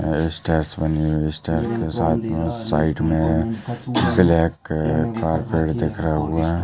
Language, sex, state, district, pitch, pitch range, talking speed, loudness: Hindi, male, Chhattisgarh, Bastar, 80 Hz, 80-85 Hz, 115 wpm, -21 LUFS